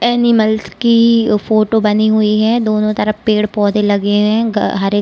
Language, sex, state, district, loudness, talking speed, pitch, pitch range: Hindi, female, Bihar, Saran, -13 LUFS, 155 wpm, 215 Hz, 210-225 Hz